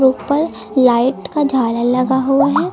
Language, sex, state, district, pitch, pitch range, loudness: Hindi, female, Uttar Pradesh, Lucknow, 265 Hz, 250-285 Hz, -15 LUFS